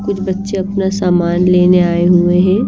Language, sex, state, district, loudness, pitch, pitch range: Hindi, female, Bihar, Patna, -13 LUFS, 180 Hz, 180-195 Hz